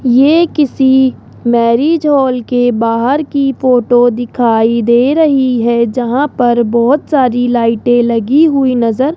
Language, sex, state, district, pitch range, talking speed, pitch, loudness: Hindi, male, Rajasthan, Jaipur, 235-275 Hz, 135 wpm, 250 Hz, -11 LUFS